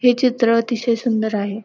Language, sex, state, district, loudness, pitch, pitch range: Marathi, female, Maharashtra, Pune, -18 LUFS, 230 Hz, 220-245 Hz